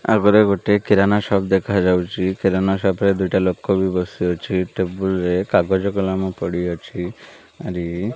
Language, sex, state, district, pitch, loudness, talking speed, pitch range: Odia, male, Odisha, Malkangiri, 95 Hz, -19 LUFS, 140 wpm, 90-100 Hz